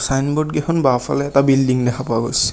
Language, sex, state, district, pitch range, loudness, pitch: Assamese, male, Assam, Kamrup Metropolitan, 125-140 Hz, -17 LUFS, 135 Hz